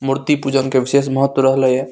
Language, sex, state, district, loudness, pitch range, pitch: Maithili, male, Bihar, Saharsa, -16 LUFS, 135-140 Hz, 135 Hz